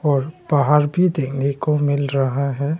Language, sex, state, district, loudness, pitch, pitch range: Hindi, male, Arunachal Pradesh, Longding, -19 LUFS, 145 Hz, 140-150 Hz